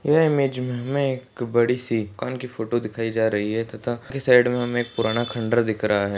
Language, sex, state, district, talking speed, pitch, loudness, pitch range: Hindi, male, Maharashtra, Solapur, 240 wpm, 120 Hz, -23 LUFS, 110-125 Hz